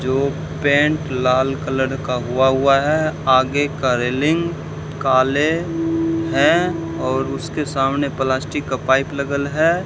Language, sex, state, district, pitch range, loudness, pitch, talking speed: Hindi, male, Rajasthan, Bikaner, 130-155 Hz, -18 LUFS, 140 Hz, 130 wpm